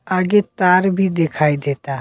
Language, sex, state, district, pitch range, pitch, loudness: Bhojpuri, male, Bihar, Muzaffarpur, 145-190 Hz, 180 Hz, -17 LUFS